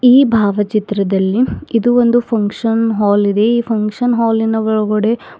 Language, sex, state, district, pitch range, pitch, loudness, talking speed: Kannada, female, Karnataka, Bidar, 210-235 Hz, 225 Hz, -14 LUFS, 145 wpm